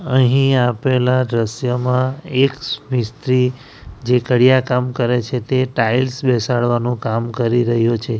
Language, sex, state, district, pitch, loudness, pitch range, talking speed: Gujarati, male, Gujarat, Valsad, 125 Hz, -17 LUFS, 120-130 Hz, 125 wpm